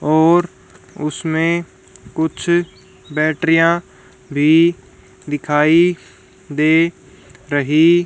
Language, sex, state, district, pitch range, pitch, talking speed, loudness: Hindi, female, Haryana, Jhajjar, 150-170 Hz, 160 Hz, 60 wpm, -16 LUFS